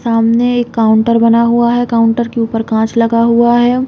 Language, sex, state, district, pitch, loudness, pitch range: Hindi, female, Uttar Pradesh, Hamirpur, 230 Hz, -11 LUFS, 230-240 Hz